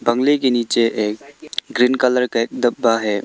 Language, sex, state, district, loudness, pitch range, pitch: Hindi, male, Arunachal Pradesh, Lower Dibang Valley, -18 LUFS, 115-130 Hz, 120 Hz